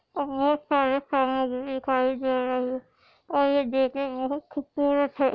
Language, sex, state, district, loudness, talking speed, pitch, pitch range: Hindi, female, Andhra Pradesh, Anantapur, -26 LUFS, 155 wpm, 270 Hz, 260-285 Hz